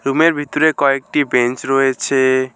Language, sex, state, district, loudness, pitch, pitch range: Bengali, male, West Bengal, Alipurduar, -15 LUFS, 135 Hz, 130-150 Hz